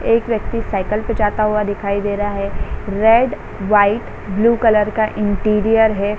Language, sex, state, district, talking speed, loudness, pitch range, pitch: Hindi, female, Bihar, Sitamarhi, 165 wpm, -17 LUFS, 205-225 Hz, 210 Hz